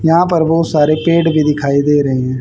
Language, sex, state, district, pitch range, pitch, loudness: Hindi, female, Haryana, Charkhi Dadri, 145-165 Hz, 155 Hz, -13 LUFS